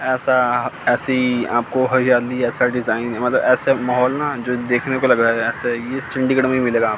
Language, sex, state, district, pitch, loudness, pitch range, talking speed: Hindi, male, Chandigarh, Chandigarh, 125 Hz, -18 LUFS, 120-130 Hz, 180 wpm